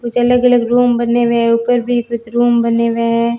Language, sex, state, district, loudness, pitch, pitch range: Hindi, female, Rajasthan, Bikaner, -13 LUFS, 235 Hz, 235-245 Hz